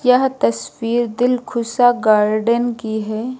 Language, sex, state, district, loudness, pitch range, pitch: Hindi, female, Uttar Pradesh, Lucknow, -17 LUFS, 215-245 Hz, 235 Hz